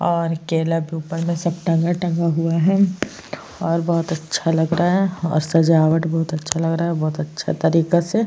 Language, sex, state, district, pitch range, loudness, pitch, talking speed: Hindi, female, Uttar Pradesh, Jyotiba Phule Nagar, 160-170 Hz, -20 LUFS, 165 Hz, 195 wpm